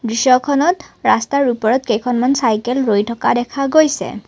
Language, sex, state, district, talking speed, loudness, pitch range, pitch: Assamese, female, Assam, Kamrup Metropolitan, 125 wpm, -16 LUFS, 225-275 Hz, 245 Hz